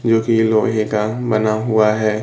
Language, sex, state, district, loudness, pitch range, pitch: Hindi, male, Bihar, Kaimur, -16 LUFS, 110-115 Hz, 110 Hz